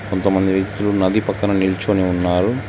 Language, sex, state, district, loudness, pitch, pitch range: Telugu, male, Telangana, Hyderabad, -18 LUFS, 95 Hz, 95-100 Hz